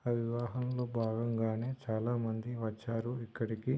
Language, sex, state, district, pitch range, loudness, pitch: Telugu, male, Telangana, Karimnagar, 115-120 Hz, -36 LUFS, 115 Hz